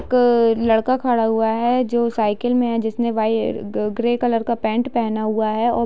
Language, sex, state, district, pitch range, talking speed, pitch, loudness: Hindi, female, Bihar, Sitamarhi, 225-240 Hz, 205 wpm, 230 Hz, -19 LUFS